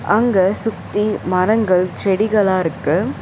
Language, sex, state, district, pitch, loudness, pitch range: Tamil, female, Tamil Nadu, Chennai, 200 Hz, -17 LUFS, 185-215 Hz